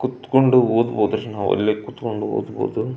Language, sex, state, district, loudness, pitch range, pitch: Kannada, male, Karnataka, Belgaum, -20 LUFS, 105-130 Hz, 115 Hz